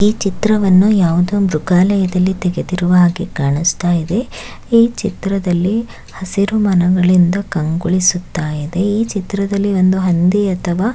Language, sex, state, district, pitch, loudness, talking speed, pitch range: Kannada, female, Karnataka, Shimoga, 185 Hz, -15 LUFS, 110 wpm, 175-200 Hz